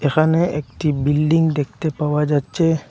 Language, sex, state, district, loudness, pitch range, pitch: Bengali, male, Assam, Hailakandi, -19 LUFS, 145-160 Hz, 150 Hz